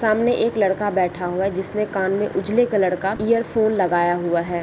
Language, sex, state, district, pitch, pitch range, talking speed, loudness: Hindi, female, Chhattisgarh, Bilaspur, 195 Hz, 180-215 Hz, 220 wpm, -20 LUFS